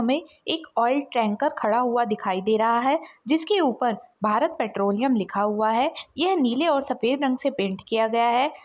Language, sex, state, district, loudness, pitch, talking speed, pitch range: Hindi, female, Maharashtra, Dhule, -24 LUFS, 245 Hz, 185 wpm, 220-285 Hz